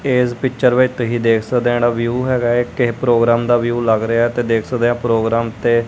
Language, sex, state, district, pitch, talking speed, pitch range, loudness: Punjabi, male, Punjab, Kapurthala, 120 Hz, 215 wpm, 115-125 Hz, -16 LUFS